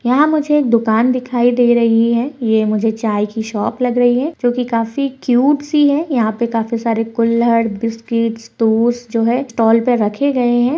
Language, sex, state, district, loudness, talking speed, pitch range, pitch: Hindi, female, Uttar Pradesh, Budaun, -15 LUFS, 195 wpm, 225-250 Hz, 235 Hz